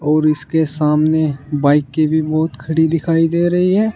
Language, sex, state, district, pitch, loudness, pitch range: Hindi, male, Uttar Pradesh, Saharanpur, 155 Hz, -16 LUFS, 150-165 Hz